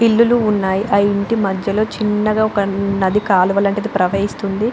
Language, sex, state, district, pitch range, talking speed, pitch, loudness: Telugu, female, Andhra Pradesh, Anantapur, 195-215 Hz, 140 wpm, 200 Hz, -16 LUFS